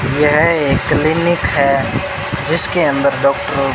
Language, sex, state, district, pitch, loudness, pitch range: Hindi, male, Rajasthan, Bikaner, 140 Hz, -14 LUFS, 140-150 Hz